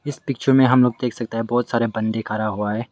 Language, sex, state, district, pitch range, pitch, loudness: Hindi, male, Meghalaya, West Garo Hills, 110-125 Hz, 115 Hz, -20 LUFS